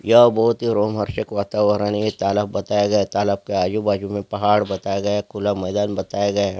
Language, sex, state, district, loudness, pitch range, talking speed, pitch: Hindi, male, Chhattisgarh, Jashpur, -20 LUFS, 100-105 Hz, 220 wpm, 105 Hz